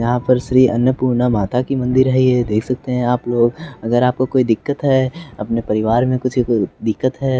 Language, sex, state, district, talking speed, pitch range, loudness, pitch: Hindi, male, Bihar, West Champaran, 205 wpm, 120-130 Hz, -17 LUFS, 125 Hz